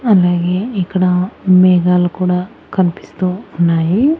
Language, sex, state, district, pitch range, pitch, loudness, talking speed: Telugu, female, Andhra Pradesh, Annamaya, 180-190 Hz, 180 Hz, -14 LUFS, 85 wpm